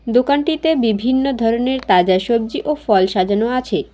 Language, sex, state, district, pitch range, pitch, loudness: Bengali, female, West Bengal, Alipurduar, 205-265 Hz, 235 Hz, -16 LUFS